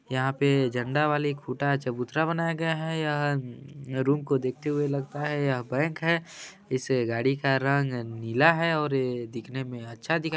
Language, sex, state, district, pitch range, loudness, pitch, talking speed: Hindi, male, Chhattisgarh, Bilaspur, 130-150 Hz, -27 LUFS, 140 Hz, 175 wpm